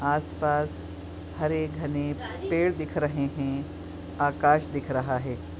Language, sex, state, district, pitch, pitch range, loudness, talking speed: Hindi, female, Goa, North and South Goa, 145 Hz, 110-150 Hz, -28 LUFS, 130 wpm